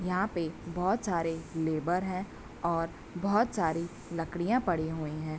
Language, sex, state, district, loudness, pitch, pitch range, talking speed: Hindi, female, Bihar, Bhagalpur, -32 LUFS, 170 Hz, 160-185 Hz, 145 wpm